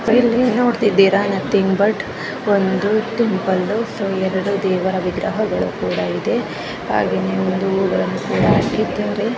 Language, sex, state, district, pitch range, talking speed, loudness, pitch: Kannada, female, Karnataka, Mysore, 185-215 Hz, 190 wpm, -18 LUFS, 195 Hz